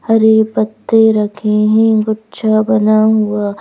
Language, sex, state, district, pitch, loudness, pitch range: Hindi, female, Madhya Pradesh, Bhopal, 215 Hz, -12 LUFS, 210-220 Hz